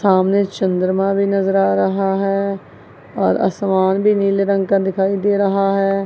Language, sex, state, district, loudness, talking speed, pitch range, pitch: Hindi, female, Punjab, Kapurthala, -17 LUFS, 160 wpm, 190-195 Hz, 195 Hz